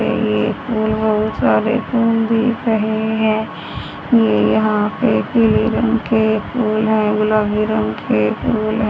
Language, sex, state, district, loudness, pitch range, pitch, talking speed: Hindi, female, Haryana, Charkhi Dadri, -16 LUFS, 215-225 Hz, 220 Hz, 140 wpm